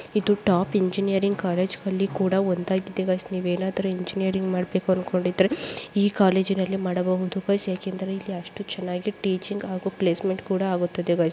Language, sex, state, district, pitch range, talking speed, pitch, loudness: Kannada, female, Karnataka, Mysore, 185-195 Hz, 120 wpm, 190 Hz, -25 LUFS